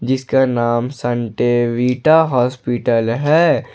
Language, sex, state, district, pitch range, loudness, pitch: Hindi, male, Jharkhand, Ranchi, 120-130 Hz, -16 LUFS, 125 Hz